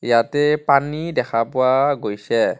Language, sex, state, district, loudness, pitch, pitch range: Assamese, male, Assam, Kamrup Metropolitan, -19 LUFS, 135 Hz, 115-145 Hz